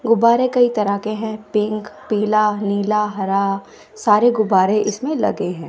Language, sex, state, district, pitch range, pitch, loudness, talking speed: Hindi, female, Bihar, West Champaran, 205-220 Hz, 210 Hz, -18 LUFS, 150 wpm